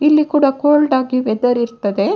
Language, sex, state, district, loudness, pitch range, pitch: Kannada, female, Karnataka, Dakshina Kannada, -15 LUFS, 235-295 Hz, 260 Hz